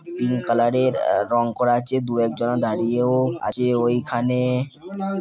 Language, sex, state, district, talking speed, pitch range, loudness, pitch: Bengali, male, West Bengal, Kolkata, 125 wpm, 120-130 Hz, -21 LUFS, 125 Hz